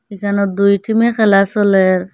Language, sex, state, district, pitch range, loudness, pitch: Bengali, female, Assam, Hailakandi, 195-210 Hz, -14 LUFS, 200 Hz